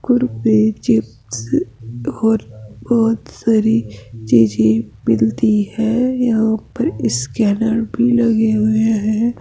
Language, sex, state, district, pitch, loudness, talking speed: Hindi, female, Rajasthan, Jaipur, 210 Hz, -16 LUFS, 90 wpm